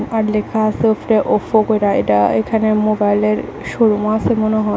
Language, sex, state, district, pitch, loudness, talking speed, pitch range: Bengali, female, Tripura, West Tripura, 215 Hz, -15 LUFS, 150 wpm, 210-220 Hz